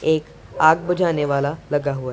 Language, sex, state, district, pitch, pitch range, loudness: Hindi, female, Punjab, Pathankot, 155 Hz, 140-160 Hz, -20 LUFS